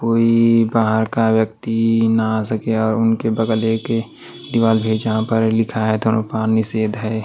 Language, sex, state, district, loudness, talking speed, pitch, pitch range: Hindi, male, Delhi, New Delhi, -17 LUFS, 175 wpm, 110 Hz, 110-115 Hz